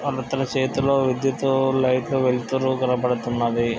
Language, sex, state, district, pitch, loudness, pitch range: Telugu, male, Andhra Pradesh, Krishna, 130 Hz, -22 LUFS, 125-135 Hz